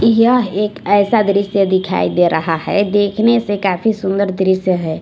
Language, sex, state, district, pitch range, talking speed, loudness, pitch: Hindi, male, Maharashtra, Washim, 190-210 Hz, 165 wpm, -15 LUFS, 200 Hz